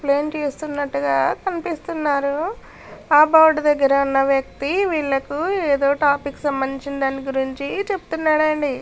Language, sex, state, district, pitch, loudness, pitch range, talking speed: Telugu, female, Karnataka, Bellary, 290 Hz, -20 LUFS, 275-315 Hz, 115 wpm